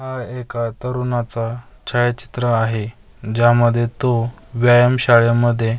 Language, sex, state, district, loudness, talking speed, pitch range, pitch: Marathi, male, Maharashtra, Mumbai Suburban, -18 LUFS, 95 wpm, 115-120 Hz, 120 Hz